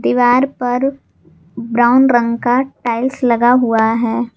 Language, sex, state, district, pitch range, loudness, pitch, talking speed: Hindi, female, Jharkhand, Garhwa, 230-250 Hz, -14 LUFS, 240 Hz, 125 wpm